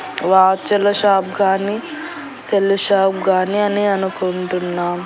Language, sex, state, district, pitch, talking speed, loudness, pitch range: Telugu, female, Andhra Pradesh, Annamaya, 195 Hz, 105 wpm, -17 LUFS, 190-205 Hz